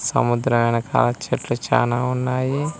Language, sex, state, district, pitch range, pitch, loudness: Telugu, male, Telangana, Mahabubabad, 120-130 Hz, 120 Hz, -21 LUFS